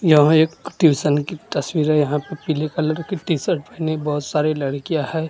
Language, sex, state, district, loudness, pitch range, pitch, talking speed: Hindi, male, Maharashtra, Gondia, -20 LUFS, 150-160 Hz, 155 Hz, 205 wpm